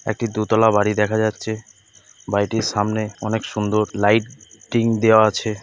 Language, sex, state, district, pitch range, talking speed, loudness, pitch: Bengali, male, West Bengal, Purulia, 105-110 Hz, 140 wpm, -19 LUFS, 110 Hz